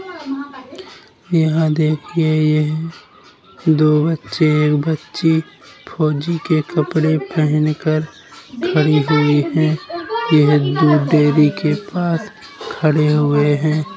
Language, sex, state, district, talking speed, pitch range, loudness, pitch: Bundeli, male, Uttar Pradesh, Jalaun, 100 wpm, 150-170 Hz, -16 LUFS, 155 Hz